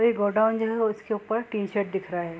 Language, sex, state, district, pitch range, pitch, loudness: Hindi, female, Bihar, Saharsa, 200-225 Hz, 215 Hz, -26 LUFS